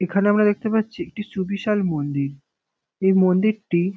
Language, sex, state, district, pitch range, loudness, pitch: Bengali, male, West Bengal, North 24 Parganas, 180-210 Hz, -21 LUFS, 195 Hz